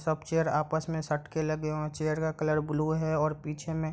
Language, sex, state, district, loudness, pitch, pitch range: Hindi, male, Bihar, Gopalganj, -31 LUFS, 155 Hz, 155-160 Hz